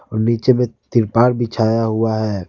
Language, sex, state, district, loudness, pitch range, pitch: Hindi, male, Jharkhand, Ranchi, -17 LUFS, 110-120 Hz, 115 Hz